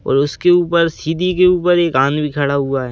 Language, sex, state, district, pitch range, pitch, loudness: Hindi, male, Madhya Pradesh, Bhopal, 140-175 Hz, 160 Hz, -15 LUFS